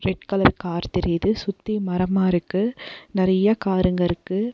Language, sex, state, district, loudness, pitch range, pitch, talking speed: Tamil, female, Tamil Nadu, Nilgiris, -22 LUFS, 180-200 Hz, 185 Hz, 130 wpm